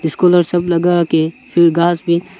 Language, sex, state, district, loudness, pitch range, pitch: Hindi, male, Arunachal Pradesh, Longding, -14 LUFS, 170-175 Hz, 170 Hz